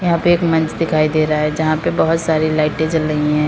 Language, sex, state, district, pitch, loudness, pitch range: Hindi, female, Uttar Pradesh, Lalitpur, 155 Hz, -16 LUFS, 155-165 Hz